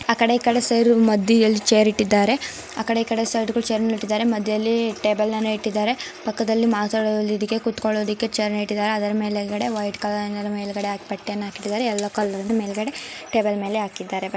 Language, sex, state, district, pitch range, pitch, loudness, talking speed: Kannada, female, Karnataka, Mysore, 210-225 Hz, 215 Hz, -22 LUFS, 160 wpm